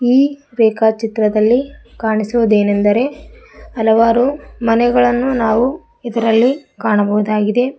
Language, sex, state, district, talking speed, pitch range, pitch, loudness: Kannada, female, Karnataka, Koppal, 70 wpm, 220-255 Hz, 230 Hz, -15 LUFS